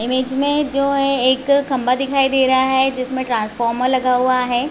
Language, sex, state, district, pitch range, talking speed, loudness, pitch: Hindi, female, Chhattisgarh, Raigarh, 250-275 Hz, 190 wpm, -16 LUFS, 260 Hz